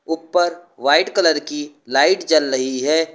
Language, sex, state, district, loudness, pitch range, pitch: Hindi, male, Uttar Pradesh, Lucknow, -18 LUFS, 135-165 Hz, 150 Hz